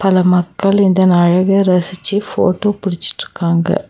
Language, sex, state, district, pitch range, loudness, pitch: Tamil, female, Tamil Nadu, Nilgiris, 180-195 Hz, -14 LUFS, 185 Hz